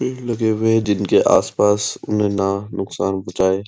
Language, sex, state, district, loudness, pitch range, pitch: Hindi, male, Uttar Pradesh, Muzaffarnagar, -18 LUFS, 95-110 Hz, 105 Hz